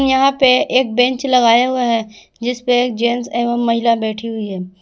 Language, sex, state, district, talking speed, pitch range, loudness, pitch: Hindi, female, Jharkhand, Garhwa, 200 wpm, 230-250 Hz, -16 LUFS, 240 Hz